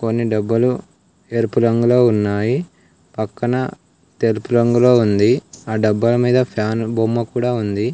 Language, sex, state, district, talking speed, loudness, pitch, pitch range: Telugu, male, Telangana, Komaram Bheem, 120 wpm, -17 LUFS, 115 Hz, 110-120 Hz